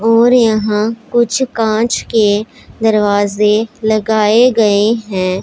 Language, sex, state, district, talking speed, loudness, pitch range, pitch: Hindi, female, Punjab, Pathankot, 100 wpm, -13 LUFS, 210-230 Hz, 220 Hz